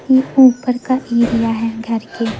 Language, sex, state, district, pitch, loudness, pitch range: Hindi, female, Madhya Pradesh, Umaria, 235 Hz, -15 LUFS, 230-255 Hz